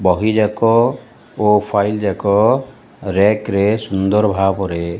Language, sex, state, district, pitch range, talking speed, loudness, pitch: Odia, male, Odisha, Malkangiri, 95-110 Hz, 110 wpm, -16 LUFS, 105 Hz